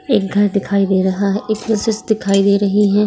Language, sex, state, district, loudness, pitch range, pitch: Hindi, female, Bihar, Saharsa, -16 LUFS, 200-215 Hz, 200 Hz